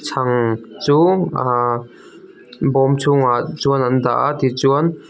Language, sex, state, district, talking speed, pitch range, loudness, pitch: Mizo, male, Mizoram, Aizawl, 120 wpm, 125-155 Hz, -17 LUFS, 135 Hz